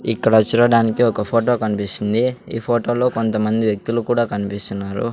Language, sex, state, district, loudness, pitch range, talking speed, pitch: Telugu, male, Andhra Pradesh, Sri Satya Sai, -18 LUFS, 105-120 Hz, 130 wpm, 115 Hz